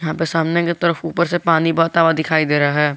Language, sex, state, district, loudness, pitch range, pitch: Hindi, male, Jharkhand, Garhwa, -17 LUFS, 155-170 Hz, 165 Hz